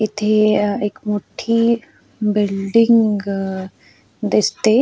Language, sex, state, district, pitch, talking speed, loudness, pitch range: Marathi, female, Goa, North and South Goa, 210 Hz, 85 wpm, -17 LUFS, 205-225 Hz